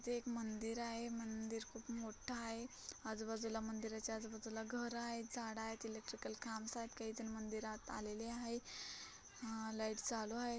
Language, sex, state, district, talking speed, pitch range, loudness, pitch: Marathi, female, Maharashtra, Chandrapur, 145 wpm, 220-235 Hz, -47 LUFS, 225 Hz